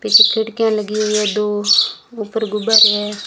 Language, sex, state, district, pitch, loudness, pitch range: Hindi, female, Rajasthan, Bikaner, 215 Hz, -14 LUFS, 210-220 Hz